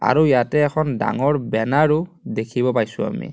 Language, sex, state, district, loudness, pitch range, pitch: Assamese, male, Assam, Kamrup Metropolitan, -20 LUFS, 125-155 Hz, 145 Hz